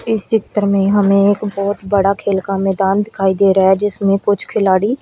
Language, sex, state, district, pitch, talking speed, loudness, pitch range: Hindi, female, Haryana, Rohtak, 200 Hz, 205 wpm, -15 LUFS, 195-205 Hz